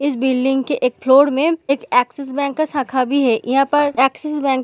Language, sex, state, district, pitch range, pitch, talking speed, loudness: Hindi, female, Bihar, Samastipur, 260-285 Hz, 275 Hz, 235 wpm, -17 LUFS